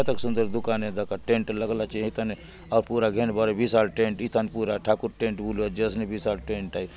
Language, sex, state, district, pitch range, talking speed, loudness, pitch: Halbi, male, Chhattisgarh, Bastar, 105-115 Hz, 225 wpm, -27 LUFS, 110 Hz